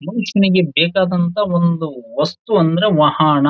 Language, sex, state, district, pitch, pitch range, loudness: Kannada, male, Karnataka, Bijapur, 170 Hz, 155-195 Hz, -16 LUFS